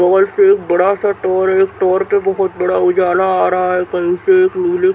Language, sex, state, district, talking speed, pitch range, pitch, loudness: Hindi, female, Bihar, Madhepura, 240 wpm, 180-205 Hz, 190 Hz, -14 LUFS